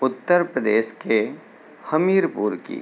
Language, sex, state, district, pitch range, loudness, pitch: Hindi, male, Uttar Pradesh, Hamirpur, 115-175 Hz, -21 LUFS, 155 Hz